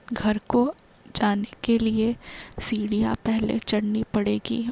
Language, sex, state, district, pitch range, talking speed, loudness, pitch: Hindi, female, Bihar, Begusarai, 210-235 Hz, 115 wpm, -25 LUFS, 220 Hz